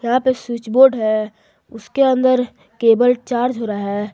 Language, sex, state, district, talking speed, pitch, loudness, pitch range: Hindi, female, Jharkhand, Garhwa, 175 wpm, 240 Hz, -17 LUFS, 220-255 Hz